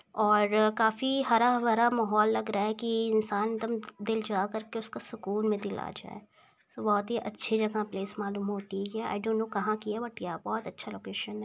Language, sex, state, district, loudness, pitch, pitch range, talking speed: Hindi, female, Uttar Pradesh, Ghazipur, -30 LUFS, 215 Hz, 205-225 Hz, 220 wpm